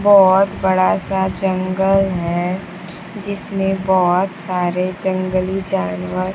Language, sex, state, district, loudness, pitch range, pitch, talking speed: Hindi, female, Bihar, Kaimur, -17 LUFS, 185-195 Hz, 190 Hz, 95 wpm